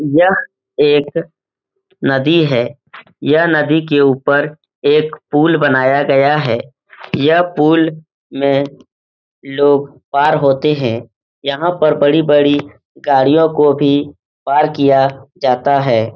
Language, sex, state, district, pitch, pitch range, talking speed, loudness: Hindi, male, Uttar Pradesh, Etah, 145 Hz, 140-155 Hz, 115 wpm, -13 LUFS